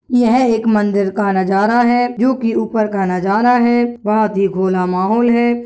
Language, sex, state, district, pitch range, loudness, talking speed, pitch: Hindi, male, Bihar, Kishanganj, 195-240 Hz, -15 LUFS, 180 wpm, 220 Hz